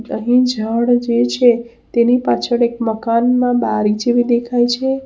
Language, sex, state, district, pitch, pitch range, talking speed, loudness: Gujarati, female, Gujarat, Valsad, 240 Hz, 235-245 Hz, 140 wpm, -15 LUFS